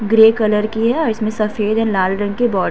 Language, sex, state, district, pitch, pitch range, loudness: Hindi, female, Uttar Pradesh, Hamirpur, 215 Hz, 210-225 Hz, -16 LUFS